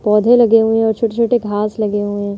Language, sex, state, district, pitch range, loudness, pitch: Hindi, female, Uttar Pradesh, Budaun, 210-230 Hz, -14 LUFS, 220 Hz